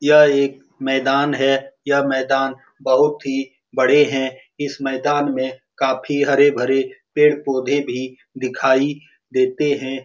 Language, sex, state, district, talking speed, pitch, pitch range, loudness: Hindi, male, Bihar, Supaul, 125 wpm, 135 Hz, 130-145 Hz, -19 LUFS